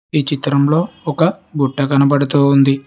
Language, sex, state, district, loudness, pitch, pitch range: Telugu, male, Telangana, Hyderabad, -15 LUFS, 145 Hz, 140-160 Hz